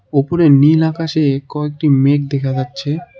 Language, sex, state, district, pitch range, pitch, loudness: Bengali, male, West Bengal, Alipurduar, 140-160 Hz, 145 Hz, -15 LUFS